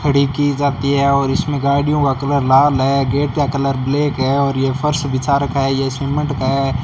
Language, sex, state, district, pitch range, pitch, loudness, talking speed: Hindi, male, Rajasthan, Bikaner, 135-145 Hz, 140 Hz, -16 LUFS, 230 wpm